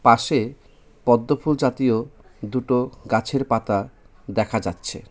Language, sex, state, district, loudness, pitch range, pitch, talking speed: Bengali, male, West Bengal, Cooch Behar, -22 LUFS, 110-130 Hz, 120 Hz, 95 wpm